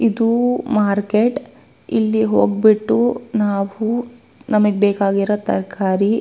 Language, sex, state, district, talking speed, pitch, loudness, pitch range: Kannada, female, Karnataka, Bellary, 85 wpm, 210 Hz, -17 LUFS, 200-230 Hz